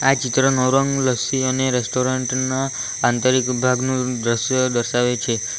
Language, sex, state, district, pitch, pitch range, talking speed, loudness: Gujarati, male, Gujarat, Valsad, 130 Hz, 125-130 Hz, 130 wpm, -19 LUFS